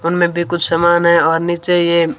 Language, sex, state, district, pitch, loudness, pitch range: Hindi, female, Rajasthan, Bikaner, 170 Hz, -14 LUFS, 170-175 Hz